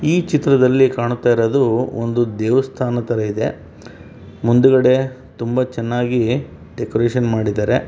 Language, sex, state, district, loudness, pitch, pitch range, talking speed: Kannada, male, Karnataka, Bellary, -17 LUFS, 120 Hz, 115-130 Hz, 105 wpm